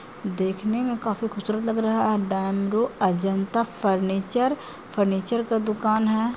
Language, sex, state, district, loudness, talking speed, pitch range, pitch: Maithili, female, Bihar, Samastipur, -24 LUFS, 125 wpm, 195-230 Hz, 215 Hz